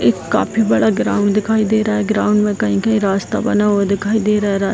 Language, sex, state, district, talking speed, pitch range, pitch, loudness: Hindi, female, Bihar, Jahanabad, 250 wpm, 200-215 Hz, 210 Hz, -16 LUFS